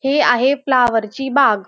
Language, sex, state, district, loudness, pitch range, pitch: Marathi, female, Maharashtra, Dhule, -15 LUFS, 225-270 Hz, 255 Hz